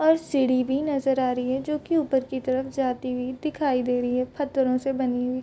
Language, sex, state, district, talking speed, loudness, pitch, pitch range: Hindi, female, Bihar, Vaishali, 245 wpm, -25 LUFS, 260 Hz, 255-280 Hz